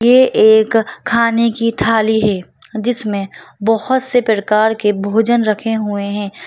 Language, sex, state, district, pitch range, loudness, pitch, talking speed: Hindi, female, Bihar, Jahanabad, 210-230 Hz, -15 LUFS, 220 Hz, 140 wpm